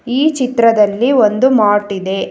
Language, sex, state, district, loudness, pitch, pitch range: Kannada, female, Karnataka, Bangalore, -13 LUFS, 230 Hz, 205-260 Hz